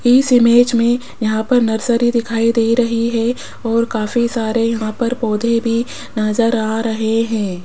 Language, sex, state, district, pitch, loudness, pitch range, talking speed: Hindi, female, Rajasthan, Jaipur, 230 Hz, -16 LUFS, 225-235 Hz, 165 wpm